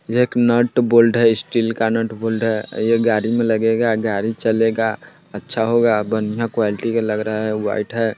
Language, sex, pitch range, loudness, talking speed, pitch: Bajjika, male, 110-115 Hz, -18 LUFS, 170 wpm, 115 Hz